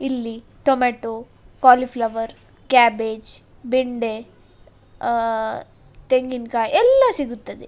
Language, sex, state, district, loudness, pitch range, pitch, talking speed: Kannada, female, Karnataka, Dakshina Kannada, -19 LUFS, 230-255 Hz, 240 Hz, 70 wpm